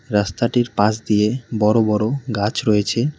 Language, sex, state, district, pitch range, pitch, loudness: Bengali, male, West Bengal, Cooch Behar, 105-120 Hz, 110 Hz, -19 LUFS